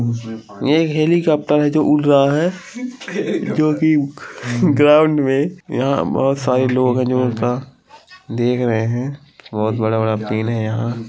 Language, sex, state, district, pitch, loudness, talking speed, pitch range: Hindi, male, Chhattisgarh, Raigarh, 135 Hz, -17 LUFS, 145 wpm, 120-155 Hz